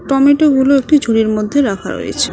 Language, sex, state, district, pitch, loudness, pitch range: Bengali, female, West Bengal, Cooch Behar, 270 Hz, -13 LUFS, 225-285 Hz